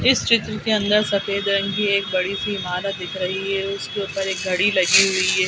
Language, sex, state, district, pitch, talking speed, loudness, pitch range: Hindi, female, Bihar, Araria, 195 Hz, 220 wpm, -20 LUFS, 185-200 Hz